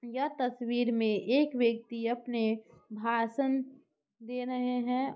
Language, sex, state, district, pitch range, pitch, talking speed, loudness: Hindi, female, Bihar, Muzaffarpur, 230-255 Hz, 245 Hz, 115 wpm, -32 LUFS